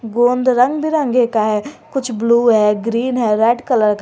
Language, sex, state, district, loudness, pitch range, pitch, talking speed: Hindi, female, Jharkhand, Garhwa, -15 LUFS, 220-255 Hz, 235 Hz, 210 wpm